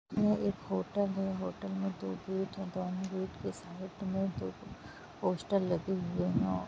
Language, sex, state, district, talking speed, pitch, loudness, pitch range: Hindi, female, Jharkhand, Jamtara, 170 wpm, 185 Hz, -35 LUFS, 160-195 Hz